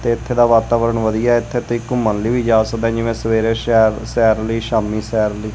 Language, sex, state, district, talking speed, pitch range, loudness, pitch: Punjabi, male, Punjab, Kapurthala, 215 wpm, 110-120 Hz, -16 LUFS, 115 Hz